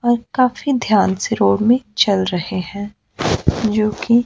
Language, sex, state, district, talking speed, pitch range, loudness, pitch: Hindi, male, Himachal Pradesh, Shimla, 155 wpm, 195-240 Hz, -17 LUFS, 215 Hz